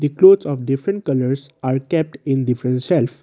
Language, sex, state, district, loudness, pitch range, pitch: English, male, Assam, Kamrup Metropolitan, -18 LUFS, 130-160 Hz, 135 Hz